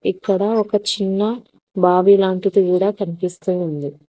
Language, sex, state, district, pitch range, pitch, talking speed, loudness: Telugu, female, Telangana, Hyderabad, 180-205 Hz, 195 Hz, 115 wpm, -18 LUFS